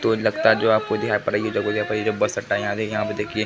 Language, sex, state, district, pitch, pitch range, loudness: Hindi, male, Bihar, Araria, 110 Hz, 105-110 Hz, -22 LUFS